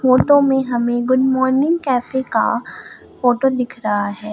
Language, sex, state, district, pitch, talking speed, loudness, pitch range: Hindi, male, Bihar, Katihar, 255 Hz, 155 wpm, -17 LUFS, 240-265 Hz